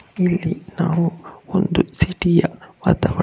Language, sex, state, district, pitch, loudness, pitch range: Kannada, male, Karnataka, Bangalore, 175 Hz, -20 LUFS, 170-185 Hz